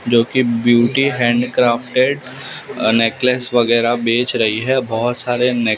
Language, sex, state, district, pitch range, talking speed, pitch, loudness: Hindi, male, Maharashtra, Mumbai Suburban, 115-125 Hz, 125 wpm, 120 Hz, -16 LUFS